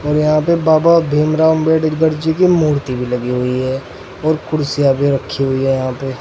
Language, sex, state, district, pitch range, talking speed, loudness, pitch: Hindi, male, Uttar Pradesh, Saharanpur, 130-155 Hz, 205 wpm, -15 LUFS, 150 Hz